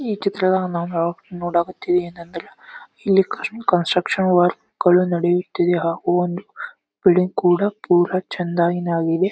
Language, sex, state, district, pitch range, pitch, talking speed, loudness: Kannada, male, Karnataka, Bijapur, 175-190 Hz, 180 Hz, 120 wpm, -20 LUFS